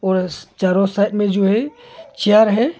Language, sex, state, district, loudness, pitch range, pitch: Hindi, male, Arunachal Pradesh, Longding, -17 LUFS, 195-240 Hz, 210 Hz